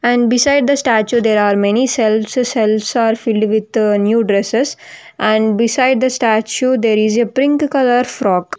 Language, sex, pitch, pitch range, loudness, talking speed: English, female, 230 Hz, 215-255 Hz, -14 LUFS, 170 wpm